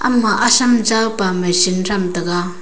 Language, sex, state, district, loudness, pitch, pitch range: Wancho, female, Arunachal Pradesh, Longding, -15 LUFS, 200 Hz, 180-230 Hz